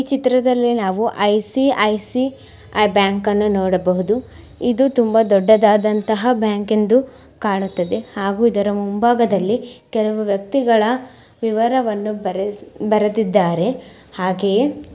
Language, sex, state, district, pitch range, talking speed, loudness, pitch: Kannada, female, Karnataka, Mysore, 205-240 Hz, 90 wpm, -17 LUFS, 215 Hz